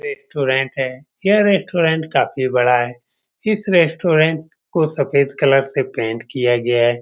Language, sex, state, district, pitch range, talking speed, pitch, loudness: Hindi, male, Bihar, Saran, 125-165 Hz, 145 wpm, 140 Hz, -17 LUFS